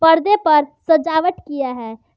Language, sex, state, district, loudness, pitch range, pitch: Hindi, female, Jharkhand, Garhwa, -16 LUFS, 280-325 Hz, 315 Hz